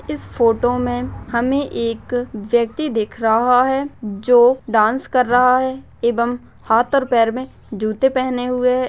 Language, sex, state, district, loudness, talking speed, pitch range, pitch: Hindi, female, Chhattisgarh, Bastar, -18 LUFS, 155 wpm, 230-255 Hz, 245 Hz